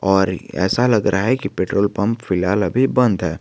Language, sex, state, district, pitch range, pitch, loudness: Hindi, male, Jharkhand, Garhwa, 95-115 Hz, 100 Hz, -18 LUFS